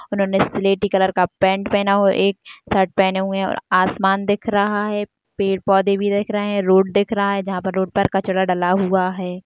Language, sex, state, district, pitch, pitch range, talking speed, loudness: Hindi, female, Rajasthan, Nagaur, 195 Hz, 190-205 Hz, 220 wpm, -19 LUFS